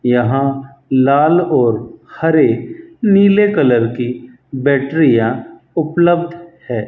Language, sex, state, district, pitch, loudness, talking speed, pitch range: Hindi, male, Rajasthan, Bikaner, 140 Hz, -14 LUFS, 85 wpm, 125-170 Hz